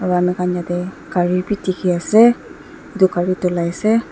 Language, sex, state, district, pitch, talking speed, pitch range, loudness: Nagamese, female, Nagaland, Dimapur, 180 Hz, 130 wpm, 180-195 Hz, -17 LUFS